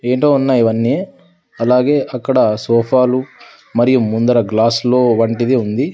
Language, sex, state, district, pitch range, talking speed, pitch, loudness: Telugu, male, Andhra Pradesh, Sri Satya Sai, 115-130 Hz, 110 wpm, 125 Hz, -14 LUFS